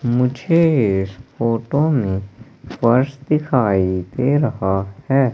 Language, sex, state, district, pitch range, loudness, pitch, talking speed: Hindi, male, Madhya Pradesh, Katni, 100-140 Hz, -18 LUFS, 125 Hz, 100 wpm